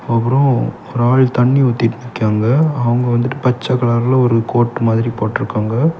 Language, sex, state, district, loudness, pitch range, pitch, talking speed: Tamil, male, Tamil Nadu, Kanyakumari, -15 LUFS, 115-130 Hz, 120 Hz, 140 wpm